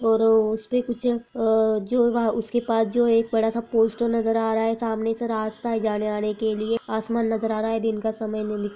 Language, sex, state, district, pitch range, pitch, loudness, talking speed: Hindi, female, Chhattisgarh, Bilaspur, 220-230 Hz, 225 Hz, -23 LUFS, 225 wpm